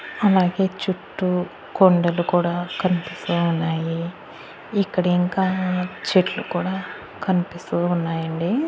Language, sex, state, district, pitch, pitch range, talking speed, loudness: Telugu, female, Andhra Pradesh, Annamaya, 180 Hz, 170-185 Hz, 85 wpm, -22 LUFS